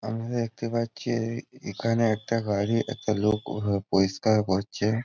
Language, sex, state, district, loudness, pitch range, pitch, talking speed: Bengali, male, West Bengal, Jhargram, -27 LUFS, 105-115 Hz, 110 Hz, 130 wpm